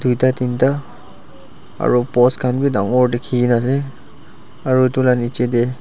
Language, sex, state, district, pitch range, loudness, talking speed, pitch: Nagamese, male, Nagaland, Dimapur, 125-130 Hz, -17 LUFS, 145 wpm, 125 Hz